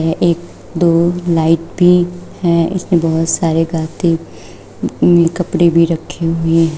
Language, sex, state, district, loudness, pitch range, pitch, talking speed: Hindi, female, Uttar Pradesh, Shamli, -14 LUFS, 165-175 Hz, 165 Hz, 125 wpm